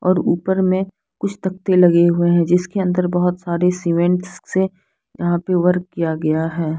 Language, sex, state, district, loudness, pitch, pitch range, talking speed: Hindi, female, Bihar, Patna, -18 LUFS, 180 Hz, 170-185 Hz, 175 wpm